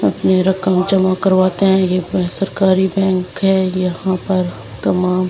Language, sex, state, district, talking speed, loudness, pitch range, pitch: Hindi, female, Delhi, New Delhi, 145 wpm, -16 LUFS, 185-190 Hz, 185 Hz